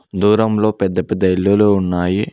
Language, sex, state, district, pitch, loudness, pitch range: Telugu, male, Telangana, Mahabubabad, 100 Hz, -15 LUFS, 95-105 Hz